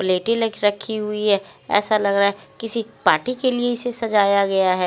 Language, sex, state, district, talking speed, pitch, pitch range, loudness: Hindi, female, Haryana, Charkhi Dadri, 185 wpm, 210 Hz, 200-230 Hz, -20 LUFS